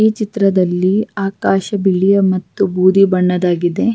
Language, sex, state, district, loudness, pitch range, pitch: Kannada, female, Karnataka, Raichur, -14 LUFS, 185-200 Hz, 195 Hz